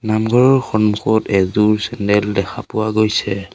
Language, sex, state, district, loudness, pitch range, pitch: Assamese, male, Assam, Sonitpur, -16 LUFS, 100-110 Hz, 110 Hz